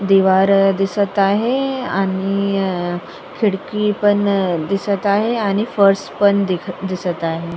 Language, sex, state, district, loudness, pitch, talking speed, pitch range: Marathi, female, Maharashtra, Sindhudurg, -17 LUFS, 195 Hz, 110 wpm, 190-205 Hz